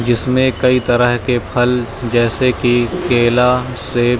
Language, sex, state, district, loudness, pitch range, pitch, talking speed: Hindi, male, Madhya Pradesh, Katni, -14 LUFS, 120-125 Hz, 120 Hz, 130 wpm